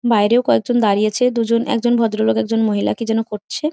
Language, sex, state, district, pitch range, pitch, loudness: Bengali, female, West Bengal, Jhargram, 215-240 Hz, 230 Hz, -17 LUFS